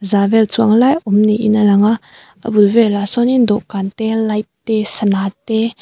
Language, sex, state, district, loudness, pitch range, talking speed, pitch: Mizo, female, Mizoram, Aizawl, -14 LUFS, 205-225 Hz, 195 wpm, 215 Hz